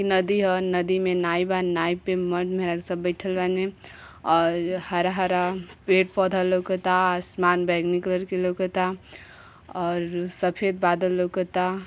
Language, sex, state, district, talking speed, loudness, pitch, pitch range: Bhojpuri, female, Uttar Pradesh, Gorakhpur, 130 wpm, -24 LUFS, 180 Hz, 175-185 Hz